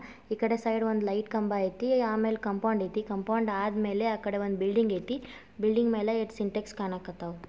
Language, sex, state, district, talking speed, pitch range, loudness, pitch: Kannada, female, Karnataka, Dharwad, 170 wpm, 200-225 Hz, -30 LUFS, 215 Hz